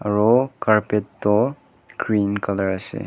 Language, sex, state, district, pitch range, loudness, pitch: Nagamese, male, Nagaland, Kohima, 100-110 Hz, -20 LUFS, 105 Hz